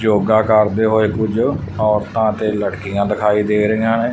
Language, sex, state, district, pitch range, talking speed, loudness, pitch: Punjabi, male, Punjab, Fazilka, 105-110 Hz, 160 wpm, -16 LUFS, 105 Hz